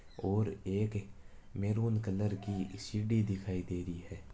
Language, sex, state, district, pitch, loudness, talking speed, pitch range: Marwari, male, Rajasthan, Nagaur, 100 Hz, -36 LUFS, 140 wpm, 95-105 Hz